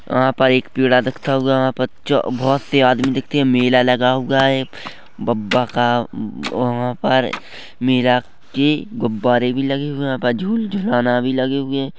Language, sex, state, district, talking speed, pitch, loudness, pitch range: Hindi, male, Chhattisgarh, Rajnandgaon, 170 wpm, 130 Hz, -17 LUFS, 125-135 Hz